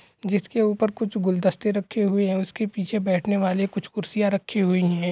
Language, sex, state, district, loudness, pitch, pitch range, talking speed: Hindi, male, Bihar, East Champaran, -24 LUFS, 200 Hz, 190-210 Hz, 200 wpm